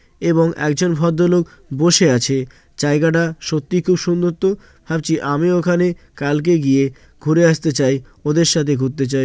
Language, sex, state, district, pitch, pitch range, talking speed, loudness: Bengali, male, West Bengal, Jalpaiguri, 160 Hz, 140-175 Hz, 145 wpm, -17 LUFS